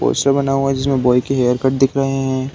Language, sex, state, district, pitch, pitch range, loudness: Hindi, male, Uttar Pradesh, Deoria, 135 Hz, 130-135 Hz, -16 LUFS